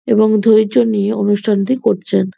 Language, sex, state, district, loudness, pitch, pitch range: Bengali, female, West Bengal, Jhargram, -14 LUFS, 215 Hz, 205-220 Hz